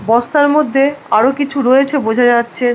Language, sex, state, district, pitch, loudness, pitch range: Bengali, female, West Bengal, Malda, 270 Hz, -13 LUFS, 240-285 Hz